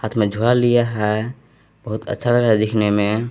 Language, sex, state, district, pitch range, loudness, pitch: Hindi, male, Jharkhand, Palamu, 110-120 Hz, -18 LUFS, 110 Hz